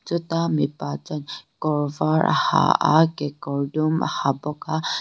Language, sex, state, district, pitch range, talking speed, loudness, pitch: Mizo, female, Mizoram, Aizawl, 145-160 Hz, 155 wpm, -22 LUFS, 150 Hz